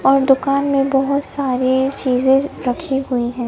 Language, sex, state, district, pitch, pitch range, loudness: Hindi, male, Madhya Pradesh, Bhopal, 270 Hz, 255-275 Hz, -17 LUFS